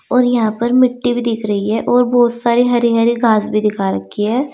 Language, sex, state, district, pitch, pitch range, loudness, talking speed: Hindi, female, Uttar Pradesh, Saharanpur, 235 Hz, 215-245 Hz, -15 LUFS, 240 wpm